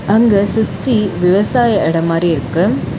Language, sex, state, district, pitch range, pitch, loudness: Tamil, female, Tamil Nadu, Chennai, 170-220 Hz, 200 Hz, -14 LUFS